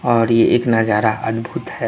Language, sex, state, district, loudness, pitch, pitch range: Hindi, male, Tripura, West Tripura, -16 LUFS, 115 Hz, 110-115 Hz